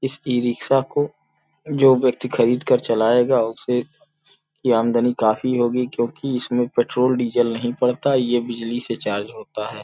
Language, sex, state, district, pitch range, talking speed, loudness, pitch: Hindi, male, Uttar Pradesh, Gorakhpur, 120-135 Hz, 165 wpm, -20 LUFS, 125 Hz